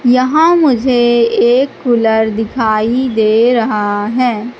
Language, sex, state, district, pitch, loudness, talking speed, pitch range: Hindi, female, Madhya Pradesh, Katni, 240 Hz, -12 LUFS, 105 wpm, 220-255 Hz